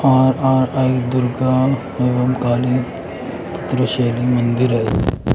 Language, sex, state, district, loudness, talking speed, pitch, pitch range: Hindi, male, Bihar, Katihar, -17 LUFS, 90 wpm, 125 Hz, 120-130 Hz